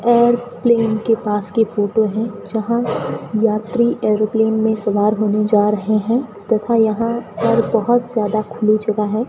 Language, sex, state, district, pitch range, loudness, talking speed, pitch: Hindi, female, Rajasthan, Bikaner, 215-230 Hz, -17 LUFS, 150 wpm, 220 Hz